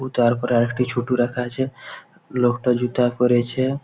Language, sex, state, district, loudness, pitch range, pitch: Bengali, male, West Bengal, Malda, -21 LUFS, 120-125 Hz, 125 Hz